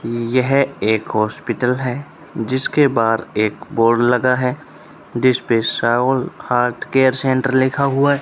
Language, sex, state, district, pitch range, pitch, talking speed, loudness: Hindi, male, Rajasthan, Bikaner, 115-135 Hz, 125 Hz, 130 wpm, -17 LUFS